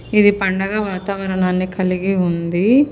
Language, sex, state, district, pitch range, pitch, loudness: Telugu, female, Telangana, Hyderabad, 185-205 Hz, 190 Hz, -18 LUFS